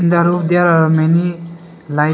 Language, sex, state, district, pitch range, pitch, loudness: English, male, Arunachal Pradesh, Lower Dibang Valley, 160-175 Hz, 170 Hz, -14 LUFS